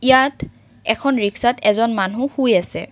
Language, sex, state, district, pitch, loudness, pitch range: Assamese, female, Assam, Kamrup Metropolitan, 240 Hz, -18 LUFS, 215-265 Hz